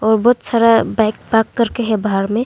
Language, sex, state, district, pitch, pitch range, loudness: Hindi, female, Arunachal Pradesh, Longding, 225 Hz, 215-235 Hz, -15 LUFS